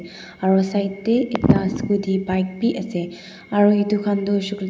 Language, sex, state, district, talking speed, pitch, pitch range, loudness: Nagamese, female, Nagaland, Dimapur, 165 wpm, 195 Hz, 190-205 Hz, -20 LUFS